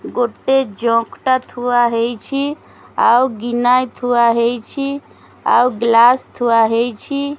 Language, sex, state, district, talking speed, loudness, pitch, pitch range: Odia, female, Odisha, Khordha, 105 wpm, -16 LUFS, 245 Hz, 235-260 Hz